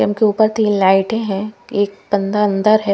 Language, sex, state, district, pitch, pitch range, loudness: Hindi, female, Himachal Pradesh, Shimla, 205 Hz, 200-215 Hz, -16 LUFS